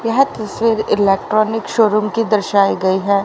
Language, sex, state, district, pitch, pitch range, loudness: Hindi, female, Haryana, Rohtak, 215 Hz, 200-225 Hz, -16 LUFS